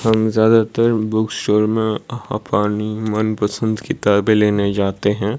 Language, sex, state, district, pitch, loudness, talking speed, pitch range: Hindi, male, Odisha, Malkangiri, 110 Hz, -17 LUFS, 120 wpm, 105-110 Hz